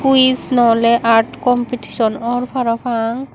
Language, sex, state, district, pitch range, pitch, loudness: Chakma, female, Tripura, Unakoti, 230-250 Hz, 240 Hz, -15 LUFS